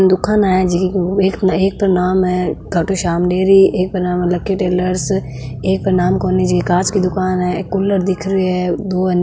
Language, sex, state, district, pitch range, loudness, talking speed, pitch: Marwari, female, Rajasthan, Nagaur, 180-190 Hz, -15 LUFS, 215 wpm, 185 Hz